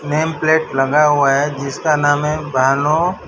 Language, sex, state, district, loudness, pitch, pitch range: Hindi, male, Gujarat, Valsad, -15 LUFS, 150 Hz, 140-155 Hz